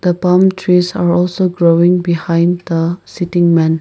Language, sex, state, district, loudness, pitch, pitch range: English, male, Nagaland, Kohima, -13 LUFS, 175 Hz, 170-180 Hz